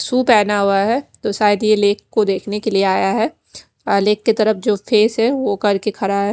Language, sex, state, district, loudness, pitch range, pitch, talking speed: Hindi, female, Odisha, Khordha, -16 LUFS, 200-220 Hz, 210 Hz, 225 wpm